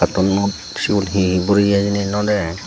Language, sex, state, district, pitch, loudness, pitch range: Chakma, female, Tripura, Dhalai, 100 Hz, -18 LUFS, 95-100 Hz